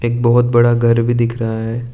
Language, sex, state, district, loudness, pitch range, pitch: Hindi, male, Arunachal Pradesh, Lower Dibang Valley, -15 LUFS, 115-120 Hz, 120 Hz